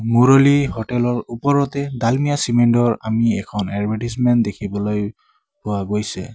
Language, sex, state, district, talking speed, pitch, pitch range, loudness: Assamese, male, Assam, Sonitpur, 125 wpm, 120 Hz, 105-125 Hz, -18 LUFS